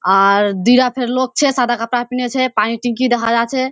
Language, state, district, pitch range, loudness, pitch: Surjapuri, Bihar, Kishanganj, 230-255 Hz, -15 LUFS, 245 Hz